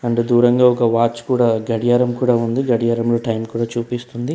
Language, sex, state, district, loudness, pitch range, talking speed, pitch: Telugu, male, Telangana, Hyderabad, -17 LUFS, 115-120 Hz, 165 wpm, 120 Hz